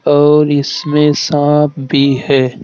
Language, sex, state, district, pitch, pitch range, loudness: Hindi, male, Uttar Pradesh, Saharanpur, 145 Hz, 140-150 Hz, -12 LUFS